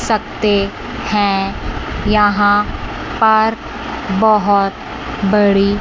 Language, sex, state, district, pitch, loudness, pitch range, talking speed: Hindi, male, Chandigarh, Chandigarh, 205 Hz, -15 LUFS, 200-220 Hz, 60 wpm